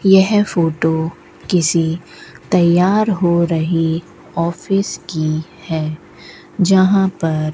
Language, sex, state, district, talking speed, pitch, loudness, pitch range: Hindi, female, Rajasthan, Bikaner, 95 wpm, 170 Hz, -16 LUFS, 160-190 Hz